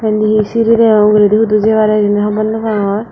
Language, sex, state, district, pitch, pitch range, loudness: Chakma, female, Tripura, Dhalai, 215 Hz, 210-220 Hz, -11 LUFS